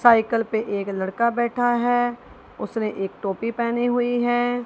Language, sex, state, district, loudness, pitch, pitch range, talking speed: Hindi, female, Punjab, Kapurthala, -23 LUFS, 235 Hz, 220-245 Hz, 155 wpm